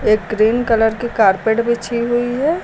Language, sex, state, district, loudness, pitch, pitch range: Hindi, female, Uttar Pradesh, Lucknow, -16 LUFS, 235 Hz, 220-240 Hz